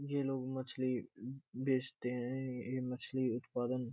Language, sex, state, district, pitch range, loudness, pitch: Hindi, male, Bihar, Gopalganj, 125-130 Hz, -39 LUFS, 130 Hz